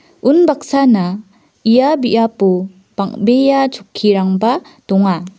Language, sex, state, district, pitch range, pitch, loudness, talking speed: Garo, female, Meghalaya, West Garo Hills, 195-270 Hz, 225 Hz, -14 LUFS, 65 wpm